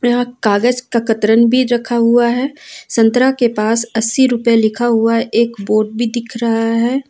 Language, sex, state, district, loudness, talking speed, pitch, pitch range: Hindi, female, Jharkhand, Ranchi, -14 LUFS, 175 wpm, 235 Hz, 225-245 Hz